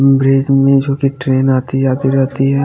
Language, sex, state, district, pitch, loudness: Hindi, female, Haryana, Charkhi Dadri, 135 Hz, -13 LUFS